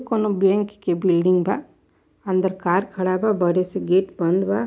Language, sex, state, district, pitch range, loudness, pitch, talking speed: Bhojpuri, female, Uttar Pradesh, Varanasi, 180-200 Hz, -21 LUFS, 190 Hz, 195 wpm